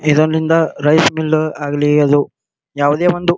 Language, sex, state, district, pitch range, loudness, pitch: Kannada, male, Karnataka, Gulbarga, 145-160 Hz, -14 LUFS, 155 Hz